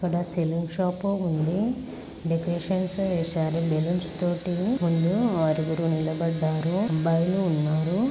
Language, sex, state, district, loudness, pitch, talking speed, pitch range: Telugu, female, Andhra Pradesh, Srikakulam, -26 LUFS, 170 Hz, 105 wpm, 165-185 Hz